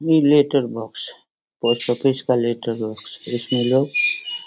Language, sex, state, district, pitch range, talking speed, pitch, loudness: Hindi, female, Bihar, Sitamarhi, 120-145 Hz, 145 wpm, 125 Hz, -17 LUFS